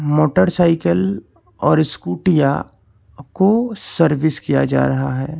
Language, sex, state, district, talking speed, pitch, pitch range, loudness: Hindi, male, Karnataka, Bangalore, 100 wpm, 150 Hz, 100-165 Hz, -17 LUFS